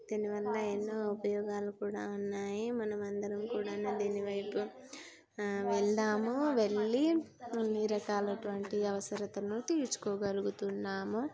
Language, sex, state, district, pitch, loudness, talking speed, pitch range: Telugu, female, Telangana, Karimnagar, 205 Hz, -35 LUFS, 95 wpm, 205-215 Hz